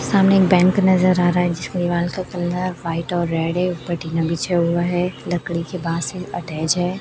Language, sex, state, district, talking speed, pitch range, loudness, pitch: Hindi, male, Chhattisgarh, Raipur, 225 wpm, 170-180 Hz, -20 LUFS, 175 Hz